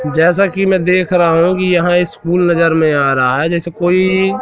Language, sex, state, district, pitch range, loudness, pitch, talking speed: Hindi, male, Madhya Pradesh, Katni, 165-185 Hz, -13 LUFS, 175 Hz, 230 wpm